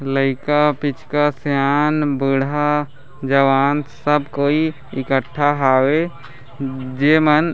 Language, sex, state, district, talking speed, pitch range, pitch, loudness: Chhattisgarhi, male, Chhattisgarh, Raigarh, 85 wpm, 135-150 Hz, 140 Hz, -18 LUFS